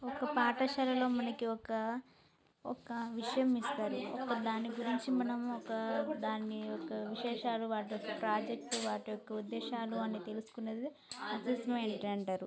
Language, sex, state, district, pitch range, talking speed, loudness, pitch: Telugu, female, Telangana, Nalgonda, 215-245 Hz, 70 wpm, -38 LUFS, 230 Hz